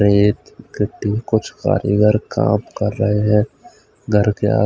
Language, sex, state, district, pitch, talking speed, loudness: Hindi, male, Odisha, Khordha, 105 Hz, 115 wpm, -18 LUFS